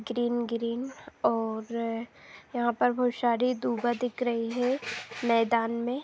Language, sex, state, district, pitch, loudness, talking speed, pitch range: Hindi, female, Bihar, Saharsa, 240 Hz, -29 LUFS, 140 wpm, 230-245 Hz